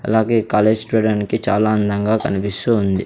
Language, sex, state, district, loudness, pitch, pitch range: Telugu, male, Andhra Pradesh, Sri Satya Sai, -17 LUFS, 110 Hz, 105-110 Hz